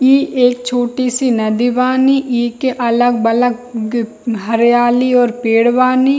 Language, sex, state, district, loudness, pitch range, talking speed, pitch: Hindi, female, Bihar, Darbhanga, -14 LUFS, 235-255 Hz, 115 wpm, 245 Hz